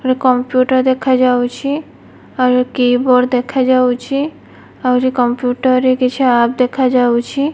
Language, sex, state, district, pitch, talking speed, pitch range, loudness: Odia, female, Odisha, Malkangiri, 255 Hz, 85 wpm, 250-260 Hz, -14 LUFS